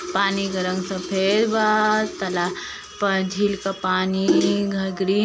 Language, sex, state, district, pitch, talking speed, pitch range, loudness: Bhojpuri, female, Uttar Pradesh, Varanasi, 195 Hz, 115 wpm, 190-200 Hz, -22 LUFS